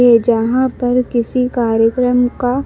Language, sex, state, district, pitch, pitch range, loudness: Hindi, female, Madhya Pradesh, Dhar, 245 Hz, 235-250 Hz, -14 LUFS